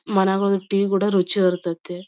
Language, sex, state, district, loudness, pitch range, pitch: Kannada, female, Karnataka, Bellary, -20 LUFS, 180-200 Hz, 190 Hz